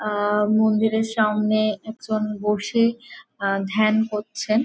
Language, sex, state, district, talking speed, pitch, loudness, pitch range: Bengali, female, West Bengal, Jhargram, 105 wpm, 215 Hz, -22 LUFS, 210-220 Hz